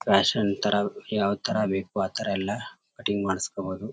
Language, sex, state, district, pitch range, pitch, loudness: Kannada, male, Karnataka, Chamarajanagar, 95-105 Hz, 100 Hz, -27 LUFS